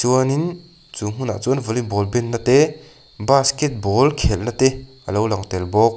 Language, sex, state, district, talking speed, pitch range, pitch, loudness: Mizo, male, Mizoram, Aizawl, 150 wpm, 110-135 Hz, 125 Hz, -19 LUFS